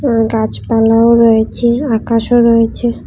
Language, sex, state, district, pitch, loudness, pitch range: Bengali, female, Tripura, West Tripura, 230 Hz, -11 LUFS, 225-235 Hz